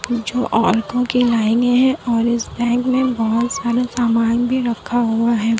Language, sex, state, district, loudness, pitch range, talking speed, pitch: Hindi, female, Bihar, Kishanganj, -17 LUFS, 230-245 Hz, 180 wpm, 240 Hz